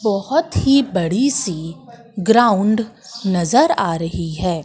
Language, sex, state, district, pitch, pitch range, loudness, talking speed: Hindi, female, Madhya Pradesh, Katni, 205 Hz, 175-235 Hz, -17 LUFS, 115 wpm